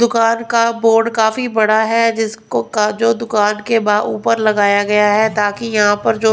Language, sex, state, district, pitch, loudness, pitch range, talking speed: Hindi, female, Punjab, Pathankot, 220 Hz, -14 LUFS, 210-230 Hz, 180 wpm